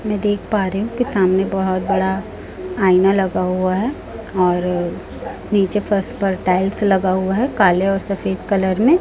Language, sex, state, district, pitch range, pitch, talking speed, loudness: Hindi, female, Chhattisgarh, Raipur, 185-205 Hz, 195 Hz, 175 wpm, -18 LUFS